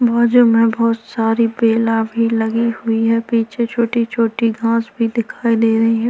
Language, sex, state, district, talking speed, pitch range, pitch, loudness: Hindi, female, Maharashtra, Chandrapur, 175 wpm, 225-235 Hz, 230 Hz, -16 LUFS